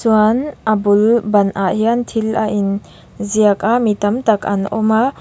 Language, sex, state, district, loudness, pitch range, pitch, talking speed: Mizo, female, Mizoram, Aizawl, -15 LUFS, 205-230 Hz, 215 Hz, 160 wpm